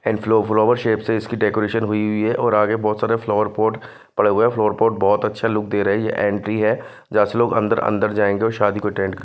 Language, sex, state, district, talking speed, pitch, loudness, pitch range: Hindi, male, Himachal Pradesh, Shimla, 240 wpm, 105 Hz, -19 LUFS, 105-110 Hz